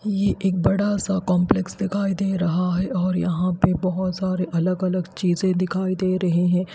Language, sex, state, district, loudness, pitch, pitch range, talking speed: Hindi, female, Haryana, Rohtak, -22 LUFS, 185 Hz, 180-190 Hz, 185 wpm